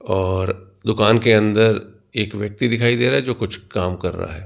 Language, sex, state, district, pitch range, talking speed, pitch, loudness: Hindi, male, Rajasthan, Jaipur, 95-110 Hz, 215 wpm, 105 Hz, -19 LUFS